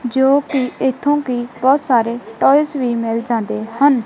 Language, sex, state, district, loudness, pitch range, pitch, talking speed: Punjabi, female, Punjab, Kapurthala, -16 LUFS, 235-275 Hz, 250 Hz, 165 wpm